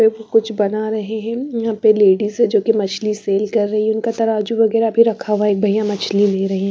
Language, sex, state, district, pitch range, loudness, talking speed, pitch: Hindi, female, Bihar, Katihar, 205-225 Hz, -17 LUFS, 240 wpm, 215 Hz